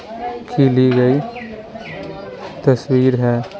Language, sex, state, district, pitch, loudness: Hindi, male, Bihar, Patna, 140 Hz, -16 LUFS